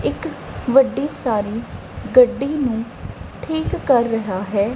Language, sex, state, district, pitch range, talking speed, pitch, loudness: Punjabi, female, Punjab, Kapurthala, 225-270 Hz, 115 wpm, 245 Hz, -19 LUFS